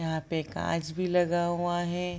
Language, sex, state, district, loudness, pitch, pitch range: Hindi, female, Bihar, Begusarai, -29 LUFS, 175 Hz, 165-175 Hz